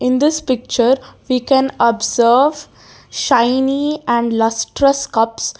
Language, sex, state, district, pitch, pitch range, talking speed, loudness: English, female, Karnataka, Bangalore, 255 Hz, 235-275 Hz, 95 wpm, -15 LUFS